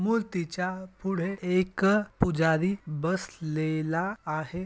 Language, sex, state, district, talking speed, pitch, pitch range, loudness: Marathi, male, Maharashtra, Dhule, 75 wpm, 180 Hz, 160-190 Hz, -29 LUFS